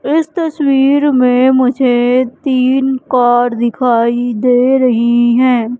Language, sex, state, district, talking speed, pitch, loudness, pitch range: Hindi, female, Madhya Pradesh, Katni, 105 wpm, 255 Hz, -12 LUFS, 240-265 Hz